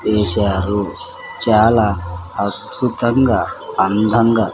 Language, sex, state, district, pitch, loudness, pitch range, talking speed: Telugu, male, Andhra Pradesh, Sri Satya Sai, 105 Hz, -16 LUFS, 100-115 Hz, 55 wpm